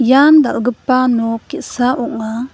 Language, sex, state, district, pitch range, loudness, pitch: Garo, female, Meghalaya, West Garo Hills, 230-265 Hz, -14 LUFS, 250 Hz